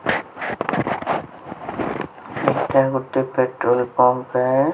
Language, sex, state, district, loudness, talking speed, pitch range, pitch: Odia, female, Odisha, Sambalpur, -21 LUFS, 65 wpm, 125-135 Hz, 130 Hz